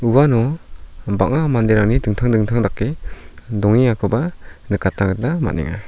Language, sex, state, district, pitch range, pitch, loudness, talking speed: Garo, male, Meghalaya, South Garo Hills, 100-125 Hz, 110 Hz, -18 LUFS, 100 wpm